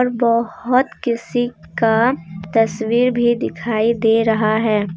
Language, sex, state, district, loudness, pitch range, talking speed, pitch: Hindi, female, Jharkhand, Deoghar, -18 LUFS, 220-240 Hz, 120 wpm, 230 Hz